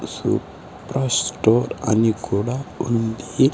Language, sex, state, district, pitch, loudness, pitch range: Telugu, male, Andhra Pradesh, Sri Satya Sai, 115 Hz, -21 LUFS, 110-130 Hz